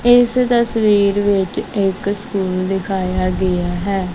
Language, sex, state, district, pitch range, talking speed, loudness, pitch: Punjabi, female, Punjab, Kapurthala, 185-210 Hz, 115 wpm, -17 LUFS, 195 Hz